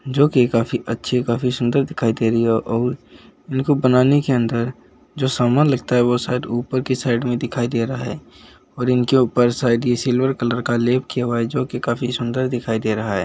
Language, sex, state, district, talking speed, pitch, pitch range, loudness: Hindi, male, Bihar, Jahanabad, 220 wpm, 125 Hz, 120-130 Hz, -19 LUFS